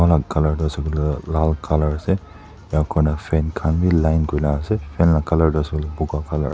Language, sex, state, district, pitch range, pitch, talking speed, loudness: Nagamese, male, Nagaland, Dimapur, 75-80 Hz, 75 Hz, 200 wpm, -20 LUFS